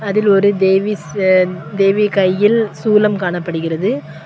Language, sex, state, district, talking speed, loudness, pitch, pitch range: Tamil, female, Tamil Nadu, Kanyakumari, 100 wpm, -15 LUFS, 195 Hz, 175-205 Hz